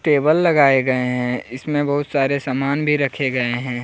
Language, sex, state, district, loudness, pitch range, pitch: Hindi, male, Jharkhand, Deoghar, -18 LUFS, 125-145 Hz, 135 Hz